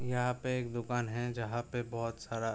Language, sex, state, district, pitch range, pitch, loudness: Hindi, male, Uttar Pradesh, Budaun, 115-125 Hz, 120 Hz, -36 LUFS